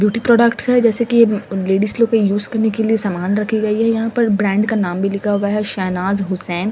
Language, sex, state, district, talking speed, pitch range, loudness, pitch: Hindi, female, Delhi, New Delhi, 240 wpm, 200-225 Hz, -16 LUFS, 210 Hz